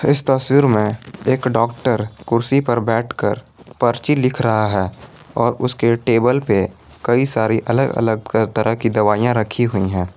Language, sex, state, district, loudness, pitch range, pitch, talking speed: Hindi, male, Jharkhand, Garhwa, -17 LUFS, 110-125 Hz, 115 Hz, 155 wpm